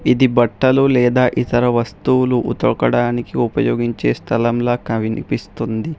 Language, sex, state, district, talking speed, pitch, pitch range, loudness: Telugu, male, Telangana, Hyderabad, 90 wpm, 120 Hz, 115-125 Hz, -17 LUFS